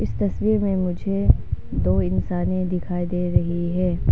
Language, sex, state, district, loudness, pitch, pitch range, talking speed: Hindi, female, Arunachal Pradesh, Papum Pare, -22 LUFS, 180 Hz, 110-185 Hz, 145 wpm